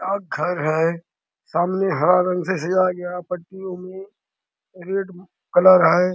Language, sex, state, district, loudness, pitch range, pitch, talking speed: Hindi, male, Chhattisgarh, Bastar, -20 LUFS, 180-190 Hz, 180 Hz, 135 wpm